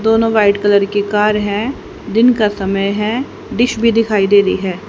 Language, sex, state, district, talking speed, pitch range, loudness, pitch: Hindi, female, Haryana, Rohtak, 195 wpm, 200-225 Hz, -14 LUFS, 210 Hz